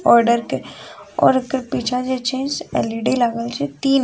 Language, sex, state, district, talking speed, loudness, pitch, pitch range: Maithili, female, Bihar, Sitamarhi, 195 wpm, -19 LUFS, 250 Hz, 235-265 Hz